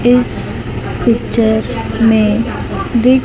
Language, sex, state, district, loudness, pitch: Hindi, female, Chandigarh, Chandigarh, -14 LUFS, 225 Hz